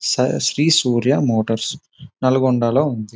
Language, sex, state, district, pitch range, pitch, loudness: Telugu, male, Telangana, Nalgonda, 115-135 Hz, 130 Hz, -18 LUFS